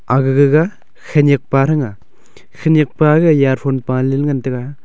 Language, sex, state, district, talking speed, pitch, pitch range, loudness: Wancho, male, Arunachal Pradesh, Longding, 160 wpm, 140 Hz, 130-150 Hz, -14 LUFS